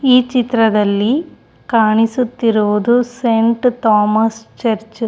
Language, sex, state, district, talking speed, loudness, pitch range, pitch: Kannada, female, Karnataka, Shimoga, 80 wpm, -15 LUFS, 220-245 Hz, 225 Hz